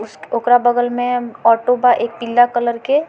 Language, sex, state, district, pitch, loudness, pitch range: Bhojpuri, female, Bihar, Muzaffarpur, 240 Hz, -16 LUFS, 235-245 Hz